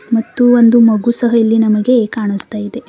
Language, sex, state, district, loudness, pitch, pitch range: Kannada, female, Karnataka, Bidar, -12 LUFS, 230 Hz, 215-240 Hz